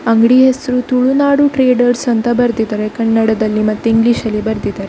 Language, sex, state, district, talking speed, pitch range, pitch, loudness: Kannada, female, Karnataka, Dakshina Kannada, 125 wpm, 220-250 Hz, 235 Hz, -13 LUFS